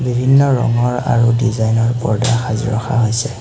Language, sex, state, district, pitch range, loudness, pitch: Assamese, male, Assam, Hailakandi, 115-125 Hz, -15 LUFS, 120 Hz